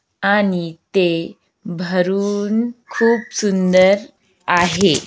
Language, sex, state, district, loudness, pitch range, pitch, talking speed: Marathi, female, Maharashtra, Aurangabad, -17 LUFS, 180-205 Hz, 195 Hz, 70 wpm